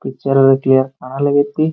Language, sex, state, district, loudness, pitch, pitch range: Kannada, male, Karnataka, Bijapur, -14 LUFS, 135 Hz, 135-145 Hz